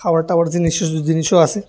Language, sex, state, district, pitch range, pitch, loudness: Bengali, male, Tripura, West Tripura, 160-175 Hz, 170 Hz, -16 LUFS